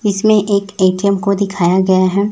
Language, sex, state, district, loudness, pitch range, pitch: Hindi, male, Chhattisgarh, Raipur, -14 LUFS, 185-200 Hz, 200 Hz